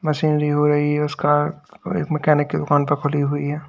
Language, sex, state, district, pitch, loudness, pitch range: Hindi, male, Uttar Pradesh, Lalitpur, 150 Hz, -20 LUFS, 145-150 Hz